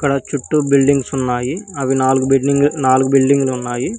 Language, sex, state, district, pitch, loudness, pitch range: Telugu, male, Telangana, Hyderabad, 135 Hz, -15 LUFS, 130-140 Hz